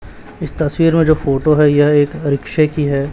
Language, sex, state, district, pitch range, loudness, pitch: Hindi, male, Chhattisgarh, Raipur, 145-155 Hz, -14 LUFS, 150 Hz